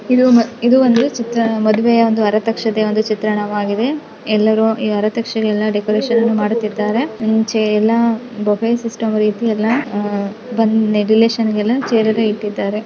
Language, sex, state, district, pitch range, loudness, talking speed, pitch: Kannada, female, Karnataka, Dakshina Kannada, 215-230 Hz, -15 LUFS, 100 wpm, 220 Hz